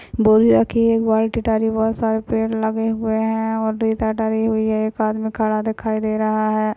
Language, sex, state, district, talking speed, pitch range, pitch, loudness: Hindi, female, Maharashtra, Chandrapur, 170 wpm, 220-225 Hz, 220 Hz, -19 LUFS